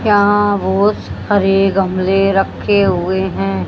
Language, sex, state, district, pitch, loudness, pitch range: Hindi, female, Haryana, Charkhi Dadri, 195 Hz, -14 LUFS, 190-205 Hz